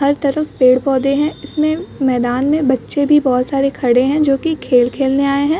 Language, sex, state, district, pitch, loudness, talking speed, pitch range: Hindi, female, Uttar Pradesh, Muzaffarnagar, 275 Hz, -15 LUFS, 205 wpm, 260-295 Hz